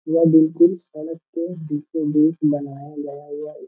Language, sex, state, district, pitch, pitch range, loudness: Hindi, male, Bihar, Darbhanga, 155 Hz, 145-165 Hz, -19 LUFS